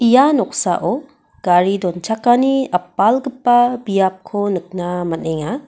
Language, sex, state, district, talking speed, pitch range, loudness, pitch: Garo, female, Meghalaya, West Garo Hills, 85 wpm, 180-260 Hz, -17 LUFS, 215 Hz